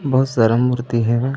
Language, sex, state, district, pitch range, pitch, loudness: Chhattisgarhi, male, Chhattisgarh, Raigarh, 115-130 Hz, 125 Hz, -17 LUFS